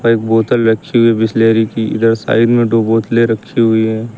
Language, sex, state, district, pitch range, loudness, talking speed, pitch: Hindi, male, Uttar Pradesh, Lucknow, 110-115 Hz, -12 LUFS, 215 wpm, 115 Hz